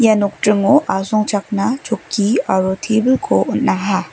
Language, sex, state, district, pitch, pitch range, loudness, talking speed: Garo, female, Meghalaya, West Garo Hills, 210 Hz, 195-225 Hz, -16 LUFS, 85 wpm